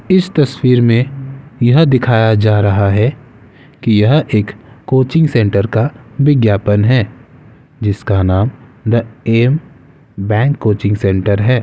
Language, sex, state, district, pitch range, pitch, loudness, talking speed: Hindi, male, Bihar, Samastipur, 105-135 Hz, 120 Hz, -13 LUFS, 125 wpm